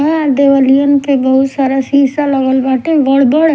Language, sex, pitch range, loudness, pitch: Bhojpuri, female, 265-285 Hz, -11 LUFS, 275 Hz